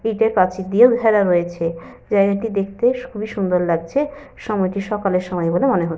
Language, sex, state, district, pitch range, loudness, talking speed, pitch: Bengali, female, Jharkhand, Sahebganj, 180-225 Hz, -19 LUFS, 160 wpm, 200 Hz